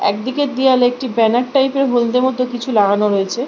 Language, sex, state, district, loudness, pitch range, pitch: Bengali, female, West Bengal, Purulia, -16 LUFS, 225-260 Hz, 245 Hz